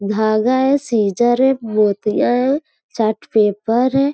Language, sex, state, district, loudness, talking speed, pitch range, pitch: Hindi, female, Uttar Pradesh, Gorakhpur, -16 LUFS, 130 wpm, 215-265 Hz, 235 Hz